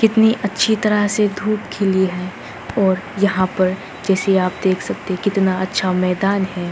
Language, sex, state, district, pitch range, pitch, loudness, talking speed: Hindi, female, Uttarakhand, Uttarkashi, 185-205 Hz, 190 Hz, -18 LUFS, 160 wpm